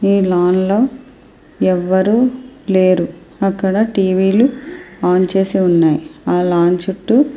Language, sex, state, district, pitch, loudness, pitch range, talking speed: Telugu, female, Andhra Pradesh, Srikakulam, 190 Hz, -15 LUFS, 180-235 Hz, 100 wpm